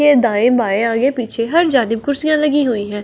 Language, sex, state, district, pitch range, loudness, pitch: Hindi, female, Delhi, New Delhi, 230-290 Hz, -15 LUFS, 245 Hz